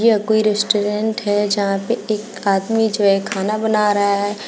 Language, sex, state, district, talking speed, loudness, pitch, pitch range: Hindi, female, Uttar Pradesh, Shamli, 190 wpm, -18 LUFS, 210 Hz, 200-220 Hz